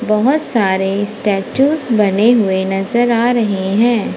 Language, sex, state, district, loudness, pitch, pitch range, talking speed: Hindi, female, Punjab, Kapurthala, -14 LUFS, 215 Hz, 195-240 Hz, 130 wpm